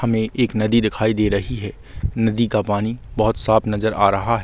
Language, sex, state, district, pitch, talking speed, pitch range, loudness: Hindi, male, Chhattisgarh, Rajnandgaon, 110 Hz, 230 wpm, 105-115 Hz, -19 LUFS